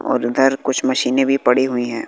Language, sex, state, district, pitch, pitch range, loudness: Hindi, male, Bihar, West Champaran, 130 Hz, 125-135 Hz, -17 LUFS